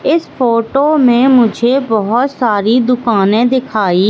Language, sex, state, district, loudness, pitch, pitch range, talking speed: Hindi, female, Madhya Pradesh, Katni, -12 LUFS, 240 Hz, 220-260 Hz, 115 wpm